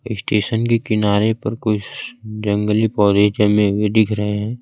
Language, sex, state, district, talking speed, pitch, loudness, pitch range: Hindi, male, Bihar, Kaimur, 155 wpm, 105 Hz, -17 LUFS, 105-110 Hz